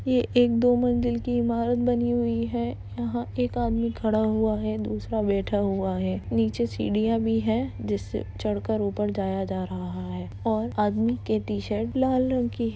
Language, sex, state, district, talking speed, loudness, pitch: Hindi, female, Bihar, Gaya, 185 wpm, -26 LUFS, 195 Hz